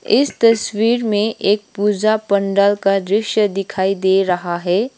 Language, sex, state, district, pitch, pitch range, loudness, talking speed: Hindi, female, Sikkim, Gangtok, 205 Hz, 195-215 Hz, -16 LUFS, 145 wpm